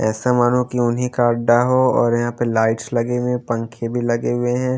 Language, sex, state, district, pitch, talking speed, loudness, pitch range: Hindi, male, Haryana, Jhajjar, 120 Hz, 225 wpm, -18 LUFS, 115-125 Hz